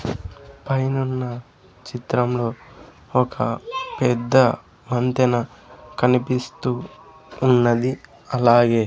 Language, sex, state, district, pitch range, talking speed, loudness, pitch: Telugu, male, Andhra Pradesh, Sri Satya Sai, 120-130 Hz, 55 wpm, -21 LUFS, 125 Hz